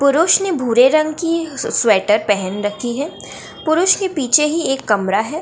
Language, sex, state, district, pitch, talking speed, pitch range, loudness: Hindi, female, Bihar, Gaya, 280 Hz, 190 wpm, 220-325 Hz, -16 LUFS